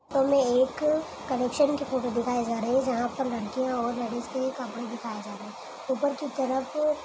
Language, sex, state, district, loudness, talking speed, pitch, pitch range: Hindi, female, Chhattisgarh, Kabirdham, -28 LUFS, 205 wpm, 260 Hz, 240-275 Hz